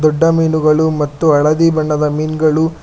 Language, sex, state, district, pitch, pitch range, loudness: Kannada, male, Karnataka, Bangalore, 155 Hz, 150-160 Hz, -13 LUFS